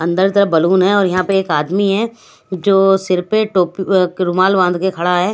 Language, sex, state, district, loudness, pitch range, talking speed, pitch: Hindi, female, Haryana, Rohtak, -14 LUFS, 180-195 Hz, 225 wpm, 190 Hz